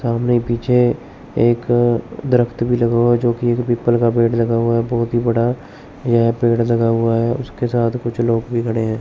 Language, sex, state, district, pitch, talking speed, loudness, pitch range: Hindi, male, Chandigarh, Chandigarh, 120 Hz, 205 wpm, -17 LUFS, 115-120 Hz